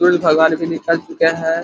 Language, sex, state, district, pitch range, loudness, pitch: Hindi, male, Chhattisgarh, Korba, 160-165 Hz, -16 LUFS, 165 Hz